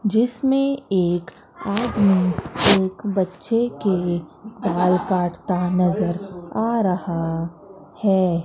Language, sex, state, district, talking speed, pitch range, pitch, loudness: Hindi, female, Madhya Pradesh, Katni, 85 wpm, 175-210 Hz, 185 Hz, -21 LUFS